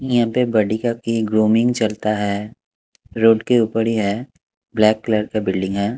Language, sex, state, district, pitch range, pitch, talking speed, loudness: Hindi, male, Maharashtra, Mumbai Suburban, 105-115 Hz, 110 Hz, 170 wpm, -18 LUFS